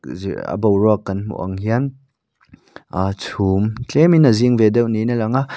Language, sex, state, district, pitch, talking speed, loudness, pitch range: Mizo, male, Mizoram, Aizawl, 110 Hz, 195 wpm, -18 LUFS, 100-125 Hz